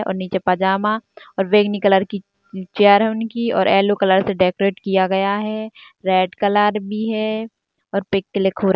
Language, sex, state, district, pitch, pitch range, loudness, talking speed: Hindi, female, Rajasthan, Nagaur, 200 Hz, 190-215 Hz, -18 LUFS, 185 wpm